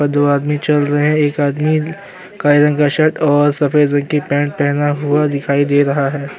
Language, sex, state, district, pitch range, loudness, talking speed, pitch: Hindi, male, Uttarakhand, Tehri Garhwal, 145-150 Hz, -14 LUFS, 205 wpm, 145 Hz